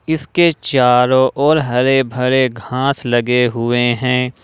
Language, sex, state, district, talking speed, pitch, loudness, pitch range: Hindi, male, Jharkhand, Ranchi, 120 wpm, 125 Hz, -15 LUFS, 120-135 Hz